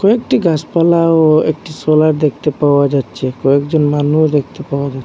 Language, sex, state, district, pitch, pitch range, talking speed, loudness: Bengali, male, Assam, Hailakandi, 150 Hz, 140-160 Hz, 155 wpm, -13 LUFS